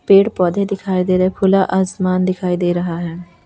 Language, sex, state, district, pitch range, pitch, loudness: Hindi, female, Chhattisgarh, Raipur, 175-190 Hz, 185 Hz, -17 LUFS